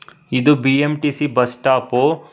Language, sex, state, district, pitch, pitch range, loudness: Kannada, male, Karnataka, Bangalore, 145 Hz, 130-150 Hz, -17 LUFS